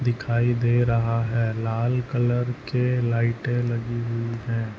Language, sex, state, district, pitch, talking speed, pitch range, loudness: Hindi, male, Chhattisgarh, Bilaspur, 120 Hz, 135 wpm, 115-120 Hz, -24 LUFS